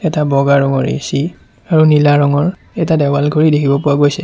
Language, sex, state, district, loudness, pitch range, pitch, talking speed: Assamese, male, Assam, Sonitpur, -13 LUFS, 140-155 Hz, 145 Hz, 185 wpm